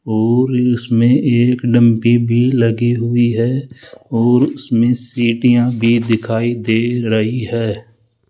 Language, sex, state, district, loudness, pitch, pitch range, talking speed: Hindi, male, Rajasthan, Jaipur, -15 LUFS, 120 Hz, 115-125 Hz, 115 wpm